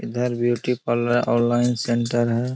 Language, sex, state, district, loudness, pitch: Hindi, male, Bihar, Bhagalpur, -21 LUFS, 120 Hz